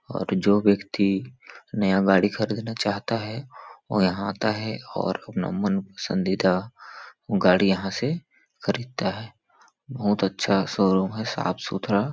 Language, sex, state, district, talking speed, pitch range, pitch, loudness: Hindi, male, Chhattisgarh, Sarguja, 135 wpm, 95-115 Hz, 105 Hz, -24 LUFS